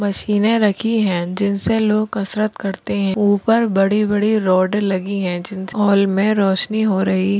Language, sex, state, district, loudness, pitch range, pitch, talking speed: Hindi, female, Maharashtra, Solapur, -17 LUFS, 195-210 Hz, 200 Hz, 170 wpm